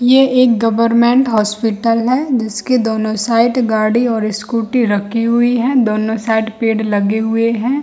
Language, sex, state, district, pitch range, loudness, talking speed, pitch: Hindi, female, Chhattisgarh, Bilaspur, 220-245 Hz, -14 LUFS, 160 wpm, 230 Hz